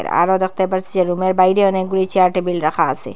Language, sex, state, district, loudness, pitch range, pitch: Bengali, female, Assam, Hailakandi, -17 LUFS, 175-190 Hz, 185 Hz